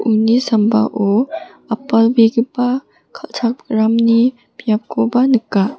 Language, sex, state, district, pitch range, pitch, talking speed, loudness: Garo, female, Meghalaya, West Garo Hills, 220-250 Hz, 230 Hz, 60 wpm, -15 LUFS